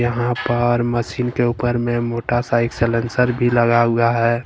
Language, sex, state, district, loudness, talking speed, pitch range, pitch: Hindi, male, Jharkhand, Ranchi, -18 LUFS, 160 wpm, 115-120 Hz, 120 Hz